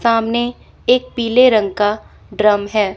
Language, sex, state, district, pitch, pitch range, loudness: Hindi, female, Chandigarh, Chandigarh, 225 Hz, 210-240 Hz, -16 LUFS